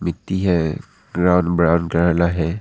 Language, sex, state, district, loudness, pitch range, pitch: Hindi, male, Arunachal Pradesh, Papum Pare, -18 LUFS, 85-90 Hz, 85 Hz